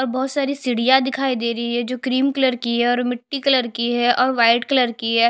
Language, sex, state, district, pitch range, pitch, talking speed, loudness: Hindi, female, Chhattisgarh, Jashpur, 235-265 Hz, 245 Hz, 260 wpm, -19 LUFS